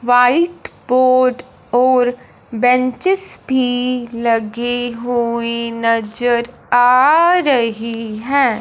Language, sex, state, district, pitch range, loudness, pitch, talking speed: Hindi, male, Punjab, Fazilka, 235-255 Hz, -15 LUFS, 245 Hz, 75 wpm